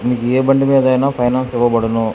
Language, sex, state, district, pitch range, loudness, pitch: Telugu, male, Andhra Pradesh, Krishna, 120-130 Hz, -15 LUFS, 125 Hz